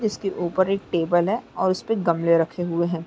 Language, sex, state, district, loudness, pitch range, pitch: Hindi, female, Bihar, Araria, -23 LUFS, 170-195 Hz, 175 Hz